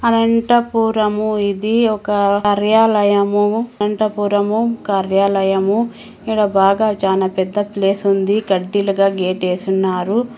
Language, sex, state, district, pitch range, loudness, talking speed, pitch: Telugu, female, Andhra Pradesh, Anantapur, 195-220 Hz, -16 LUFS, 90 wpm, 205 Hz